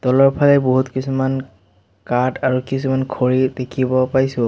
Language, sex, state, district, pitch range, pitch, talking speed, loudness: Assamese, male, Assam, Sonitpur, 125-135 Hz, 130 Hz, 120 wpm, -18 LUFS